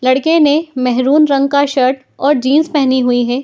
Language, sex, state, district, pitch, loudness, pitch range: Hindi, female, Uttar Pradesh, Muzaffarnagar, 275 Hz, -13 LUFS, 255-290 Hz